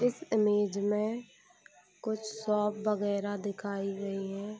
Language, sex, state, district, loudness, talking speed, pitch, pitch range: Hindi, female, Bihar, Saharsa, -32 LUFS, 130 wpm, 205 Hz, 200-215 Hz